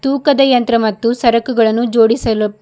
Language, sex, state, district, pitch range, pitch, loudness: Kannada, female, Karnataka, Bidar, 225-250 Hz, 235 Hz, -13 LUFS